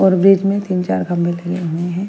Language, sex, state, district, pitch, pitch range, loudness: Hindi, female, Delhi, New Delhi, 180 Hz, 175-195 Hz, -17 LUFS